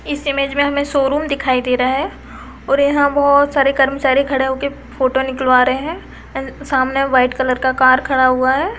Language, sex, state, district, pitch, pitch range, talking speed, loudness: Hindi, female, Bihar, Samastipur, 270 Hz, 260-280 Hz, 190 wpm, -15 LUFS